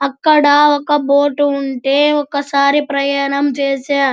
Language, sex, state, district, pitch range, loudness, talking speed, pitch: Telugu, male, Andhra Pradesh, Anantapur, 275-290 Hz, -14 LUFS, 85 wpm, 285 Hz